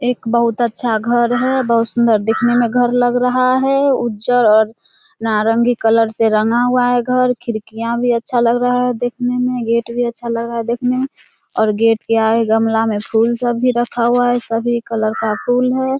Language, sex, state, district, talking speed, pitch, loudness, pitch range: Hindi, female, Bihar, Samastipur, 205 wpm, 235 Hz, -16 LUFS, 225-245 Hz